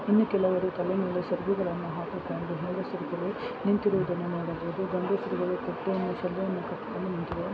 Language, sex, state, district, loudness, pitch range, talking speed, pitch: Kannada, female, Karnataka, Bijapur, -30 LUFS, 175-195 Hz, 150 wpm, 185 Hz